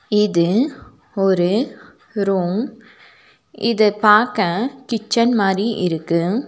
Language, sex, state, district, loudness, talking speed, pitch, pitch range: Tamil, female, Tamil Nadu, Nilgiris, -18 LUFS, 75 wpm, 210 Hz, 195-230 Hz